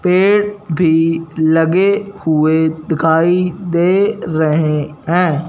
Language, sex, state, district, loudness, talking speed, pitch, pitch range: Hindi, male, Punjab, Fazilka, -14 LUFS, 85 wpm, 165 Hz, 160-185 Hz